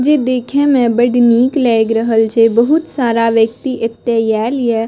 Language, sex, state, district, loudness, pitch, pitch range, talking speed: Maithili, female, Bihar, Purnia, -13 LUFS, 235 Hz, 230-255 Hz, 170 wpm